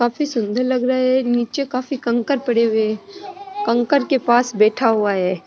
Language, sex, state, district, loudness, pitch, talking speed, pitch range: Rajasthani, female, Rajasthan, Nagaur, -18 LUFS, 245 Hz, 185 wpm, 225-270 Hz